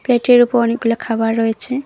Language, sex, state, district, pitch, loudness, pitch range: Bengali, female, West Bengal, Cooch Behar, 235 Hz, -15 LUFS, 225-245 Hz